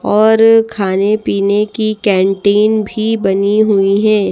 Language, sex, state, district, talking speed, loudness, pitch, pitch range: Hindi, female, Madhya Pradesh, Bhopal, 110 wpm, -12 LUFS, 210 Hz, 200-215 Hz